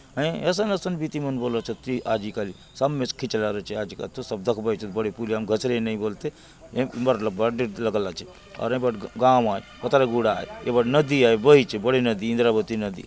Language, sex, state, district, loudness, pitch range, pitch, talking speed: Halbi, male, Chhattisgarh, Bastar, -24 LUFS, 115-135 Hz, 125 Hz, 195 wpm